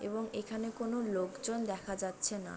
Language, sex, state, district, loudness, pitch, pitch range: Bengali, female, West Bengal, Jalpaiguri, -37 LUFS, 220 Hz, 195-225 Hz